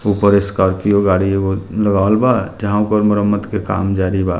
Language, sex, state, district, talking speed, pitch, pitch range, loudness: Bhojpuri, male, Bihar, Muzaffarpur, 190 wpm, 100 Hz, 95-105 Hz, -15 LUFS